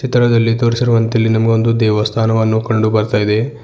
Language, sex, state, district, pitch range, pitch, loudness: Kannada, male, Karnataka, Bidar, 110-115 Hz, 115 Hz, -14 LUFS